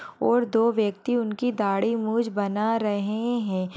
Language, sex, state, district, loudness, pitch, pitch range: Hindi, female, Uttar Pradesh, Deoria, -25 LUFS, 220 Hz, 205-235 Hz